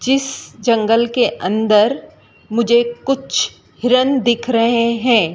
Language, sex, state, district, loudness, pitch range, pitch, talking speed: Hindi, female, Madhya Pradesh, Dhar, -16 LUFS, 225-250 Hz, 235 Hz, 110 wpm